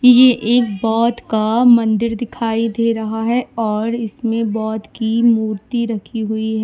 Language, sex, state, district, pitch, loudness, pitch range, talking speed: Hindi, female, Uttar Pradesh, Lalitpur, 225 Hz, -17 LUFS, 220-235 Hz, 155 wpm